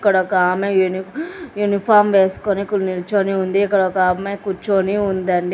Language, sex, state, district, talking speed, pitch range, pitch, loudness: Telugu, female, Telangana, Hyderabad, 140 wpm, 185-205 Hz, 195 Hz, -18 LUFS